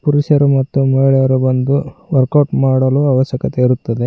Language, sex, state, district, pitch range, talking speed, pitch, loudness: Kannada, male, Karnataka, Koppal, 130-140 Hz, 120 wpm, 135 Hz, -14 LUFS